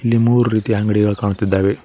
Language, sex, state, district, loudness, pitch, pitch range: Kannada, male, Karnataka, Koppal, -16 LUFS, 105 Hz, 100-115 Hz